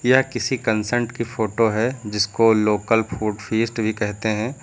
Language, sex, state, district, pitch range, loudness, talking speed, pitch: Hindi, male, Uttar Pradesh, Lucknow, 105-120 Hz, -21 LUFS, 170 wpm, 110 Hz